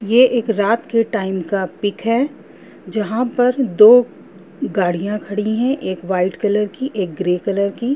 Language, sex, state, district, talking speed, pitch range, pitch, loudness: Hindi, female, Bihar, Gopalganj, 165 wpm, 195-240 Hz, 210 Hz, -17 LUFS